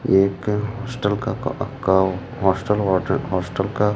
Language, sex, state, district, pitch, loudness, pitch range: Hindi, male, Chhattisgarh, Raipur, 105 Hz, -21 LUFS, 95-115 Hz